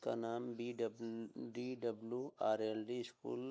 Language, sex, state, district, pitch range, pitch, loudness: Hindi, male, Uttar Pradesh, Hamirpur, 115-120 Hz, 115 Hz, -43 LUFS